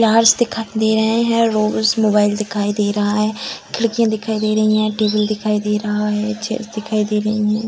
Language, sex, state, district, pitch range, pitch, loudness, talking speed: Hindi, female, Bihar, Samastipur, 210-220 Hz, 215 Hz, -17 LUFS, 205 wpm